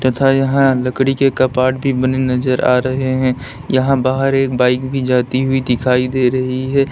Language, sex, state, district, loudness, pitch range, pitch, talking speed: Hindi, male, Uttar Pradesh, Lalitpur, -15 LUFS, 130-135 Hz, 130 Hz, 190 wpm